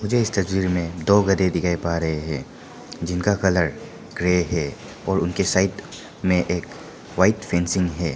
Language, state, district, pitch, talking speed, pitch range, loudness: Hindi, Arunachal Pradesh, Papum Pare, 90 Hz, 160 wpm, 85-95 Hz, -22 LUFS